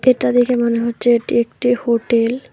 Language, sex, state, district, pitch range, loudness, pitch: Bengali, female, West Bengal, Alipurduar, 235-245 Hz, -16 LUFS, 235 Hz